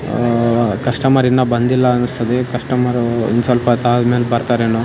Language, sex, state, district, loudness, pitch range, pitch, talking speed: Kannada, male, Karnataka, Raichur, -15 LUFS, 120-125 Hz, 120 Hz, 110 wpm